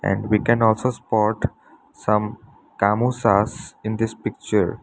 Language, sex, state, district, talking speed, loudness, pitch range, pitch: English, male, Assam, Sonitpur, 125 wpm, -21 LUFS, 105-115 Hz, 110 Hz